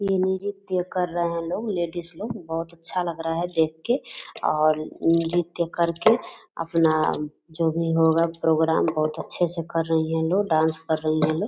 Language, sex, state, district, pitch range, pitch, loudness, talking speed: Hindi, female, Bihar, Purnia, 160-175 Hz, 165 Hz, -24 LUFS, 190 wpm